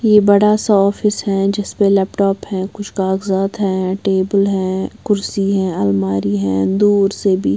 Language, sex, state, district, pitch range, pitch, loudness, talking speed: Hindi, female, Bihar, West Champaran, 190-205 Hz, 195 Hz, -16 LUFS, 160 wpm